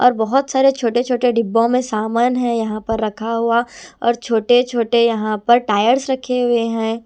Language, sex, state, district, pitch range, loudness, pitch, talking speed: Hindi, female, Punjab, Kapurthala, 225-245 Hz, -17 LUFS, 235 Hz, 185 wpm